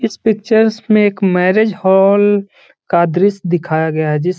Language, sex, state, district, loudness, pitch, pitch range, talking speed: Hindi, male, Bihar, Gaya, -13 LUFS, 195 Hz, 175-215 Hz, 175 wpm